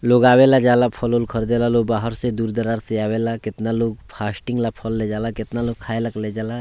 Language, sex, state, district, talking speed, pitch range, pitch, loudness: Bhojpuri, male, Bihar, Muzaffarpur, 225 wpm, 110-120 Hz, 115 Hz, -20 LUFS